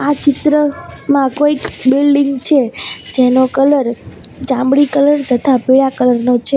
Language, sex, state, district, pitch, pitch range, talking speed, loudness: Gujarati, female, Gujarat, Valsad, 275 Hz, 255-285 Hz, 130 wpm, -13 LUFS